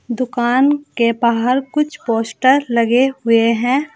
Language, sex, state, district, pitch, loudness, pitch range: Hindi, female, Uttar Pradesh, Saharanpur, 245 Hz, -16 LUFS, 235-265 Hz